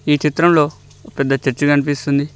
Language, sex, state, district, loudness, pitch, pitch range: Telugu, male, Telangana, Mahabubabad, -16 LUFS, 145 Hz, 135-150 Hz